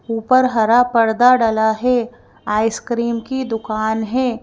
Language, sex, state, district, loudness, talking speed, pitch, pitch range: Hindi, female, Madhya Pradesh, Bhopal, -17 LUFS, 120 wpm, 230 Hz, 220-250 Hz